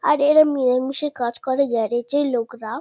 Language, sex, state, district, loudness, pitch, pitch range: Bengali, female, West Bengal, Kolkata, -20 LUFS, 260 Hz, 240-290 Hz